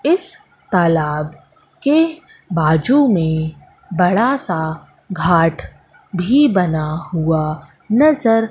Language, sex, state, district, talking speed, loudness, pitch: Hindi, female, Madhya Pradesh, Katni, 85 wpm, -16 LUFS, 180 Hz